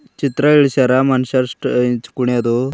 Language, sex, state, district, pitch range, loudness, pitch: Kannada, male, Karnataka, Bidar, 125-135 Hz, -15 LUFS, 130 Hz